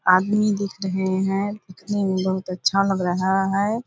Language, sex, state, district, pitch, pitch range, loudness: Hindi, female, Bihar, Purnia, 195 Hz, 185-200 Hz, -22 LUFS